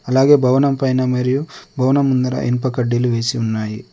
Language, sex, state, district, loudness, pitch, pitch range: Telugu, male, Telangana, Adilabad, -17 LUFS, 125 Hz, 120-130 Hz